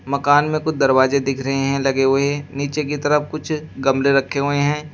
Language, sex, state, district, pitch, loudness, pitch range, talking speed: Hindi, male, Uttar Pradesh, Shamli, 140 Hz, -18 LUFS, 135-150 Hz, 205 wpm